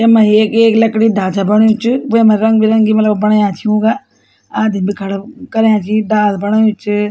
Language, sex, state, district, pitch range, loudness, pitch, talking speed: Garhwali, female, Uttarakhand, Tehri Garhwal, 210-225 Hz, -12 LUFS, 215 Hz, 195 wpm